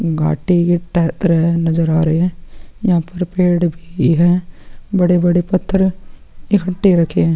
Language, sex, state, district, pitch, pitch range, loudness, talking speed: Hindi, male, Chhattisgarh, Sukma, 175 Hz, 165-180 Hz, -15 LUFS, 165 wpm